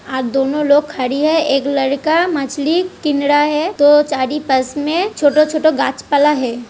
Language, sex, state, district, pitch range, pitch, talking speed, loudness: Hindi, female, Uttar Pradesh, Hamirpur, 275-305 Hz, 290 Hz, 180 wpm, -15 LUFS